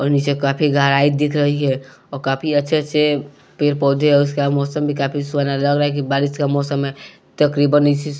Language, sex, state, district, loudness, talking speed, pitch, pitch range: Hindi, male, Bihar, West Champaran, -18 LUFS, 200 wpm, 145 Hz, 140-145 Hz